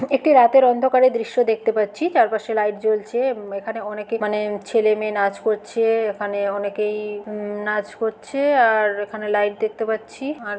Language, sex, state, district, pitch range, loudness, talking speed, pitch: Bengali, female, West Bengal, Kolkata, 210-230 Hz, -20 LUFS, 160 wpm, 215 Hz